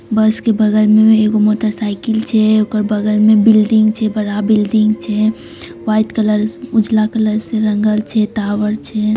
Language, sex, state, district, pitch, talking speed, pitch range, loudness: Maithili, female, Bihar, Samastipur, 215 Hz, 165 wpm, 215-220 Hz, -14 LUFS